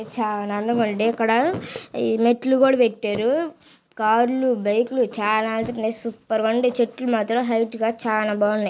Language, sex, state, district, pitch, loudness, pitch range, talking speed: Telugu, female, Andhra Pradesh, Guntur, 225 Hz, -21 LUFS, 220-245 Hz, 105 wpm